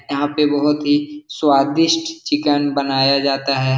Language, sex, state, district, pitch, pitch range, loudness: Hindi, male, Bihar, Jahanabad, 145 Hz, 140-150 Hz, -17 LUFS